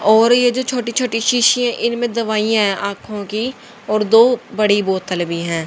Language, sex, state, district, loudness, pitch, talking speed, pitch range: Hindi, female, Haryana, Jhajjar, -16 LUFS, 225 Hz, 170 wpm, 205-240 Hz